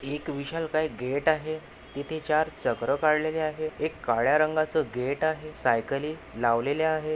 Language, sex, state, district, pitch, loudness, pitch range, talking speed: Marathi, male, Maharashtra, Nagpur, 155 Hz, -27 LUFS, 140-155 Hz, 145 wpm